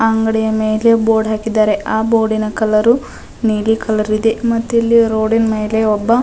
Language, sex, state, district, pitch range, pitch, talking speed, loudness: Kannada, female, Karnataka, Dharwad, 215-230 Hz, 220 Hz, 155 wpm, -14 LUFS